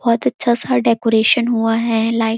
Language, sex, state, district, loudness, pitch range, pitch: Hindi, female, Chhattisgarh, Korba, -15 LUFS, 225-240 Hz, 230 Hz